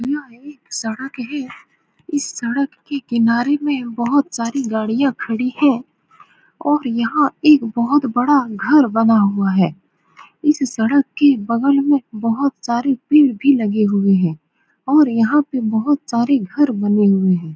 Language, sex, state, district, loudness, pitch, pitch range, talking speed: Hindi, female, Bihar, Saran, -17 LUFS, 250 Hz, 225-285 Hz, 145 wpm